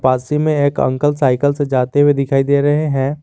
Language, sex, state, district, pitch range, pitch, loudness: Hindi, male, Jharkhand, Garhwa, 135-145 Hz, 145 Hz, -15 LUFS